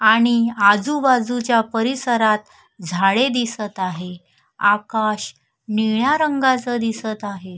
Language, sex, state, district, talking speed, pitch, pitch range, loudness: Marathi, female, Maharashtra, Sindhudurg, 85 wpm, 220 Hz, 205-245 Hz, -19 LUFS